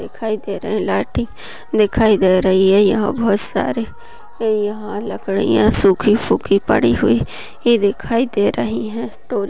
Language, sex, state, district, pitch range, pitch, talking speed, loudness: Hindi, female, Maharashtra, Sindhudurg, 200-225 Hz, 210 Hz, 150 wpm, -17 LUFS